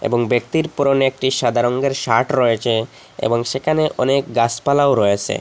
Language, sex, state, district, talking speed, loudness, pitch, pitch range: Bengali, male, Assam, Hailakandi, 145 wpm, -17 LUFS, 130 Hz, 120-140 Hz